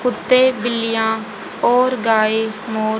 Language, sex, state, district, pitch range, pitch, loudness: Hindi, female, Haryana, Jhajjar, 220-250 Hz, 225 Hz, -17 LUFS